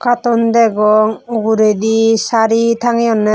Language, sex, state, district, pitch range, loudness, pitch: Chakma, female, Tripura, West Tripura, 215-235 Hz, -13 LUFS, 225 Hz